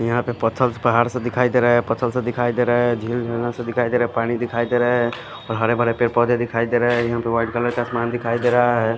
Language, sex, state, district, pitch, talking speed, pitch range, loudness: Hindi, male, Odisha, Khordha, 120 Hz, 300 wpm, 115-120 Hz, -20 LUFS